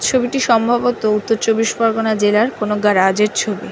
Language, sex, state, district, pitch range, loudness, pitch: Bengali, female, West Bengal, North 24 Parganas, 210-235 Hz, -16 LUFS, 225 Hz